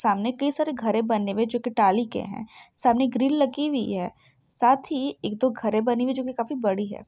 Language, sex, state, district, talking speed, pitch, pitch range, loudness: Hindi, female, Bihar, Sitamarhi, 245 wpm, 240 Hz, 210-260 Hz, -24 LUFS